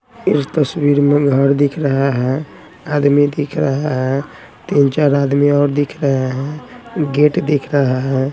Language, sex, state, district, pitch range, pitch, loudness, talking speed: Hindi, male, Bihar, Patna, 140-150 Hz, 145 Hz, -16 LUFS, 160 wpm